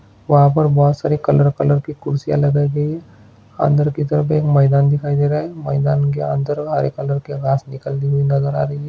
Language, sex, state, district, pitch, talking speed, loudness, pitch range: Hindi, male, Maharashtra, Solapur, 145 Hz, 215 wpm, -17 LUFS, 140-150 Hz